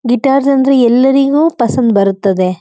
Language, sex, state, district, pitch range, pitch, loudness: Kannada, female, Karnataka, Dharwad, 205-275 Hz, 250 Hz, -11 LUFS